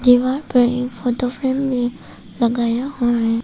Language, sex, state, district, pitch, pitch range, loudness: Hindi, female, Arunachal Pradesh, Papum Pare, 245 Hz, 240-255 Hz, -19 LUFS